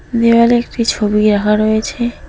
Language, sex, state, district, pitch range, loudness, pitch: Bengali, female, West Bengal, Alipurduar, 210-235 Hz, -13 LUFS, 230 Hz